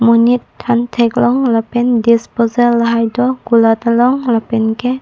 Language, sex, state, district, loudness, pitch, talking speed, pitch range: Karbi, female, Assam, Karbi Anglong, -13 LUFS, 235 Hz, 155 wpm, 230-245 Hz